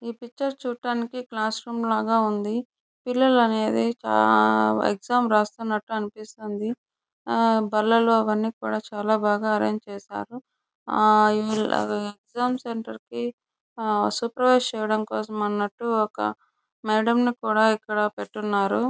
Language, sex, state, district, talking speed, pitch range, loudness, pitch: Telugu, female, Andhra Pradesh, Chittoor, 115 wpm, 210-235 Hz, -24 LUFS, 215 Hz